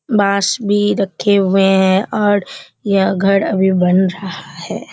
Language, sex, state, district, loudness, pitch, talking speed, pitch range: Hindi, female, Bihar, Kishanganj, -14 LUFS, 195 Hz, 145 wpm, 190-205 Hz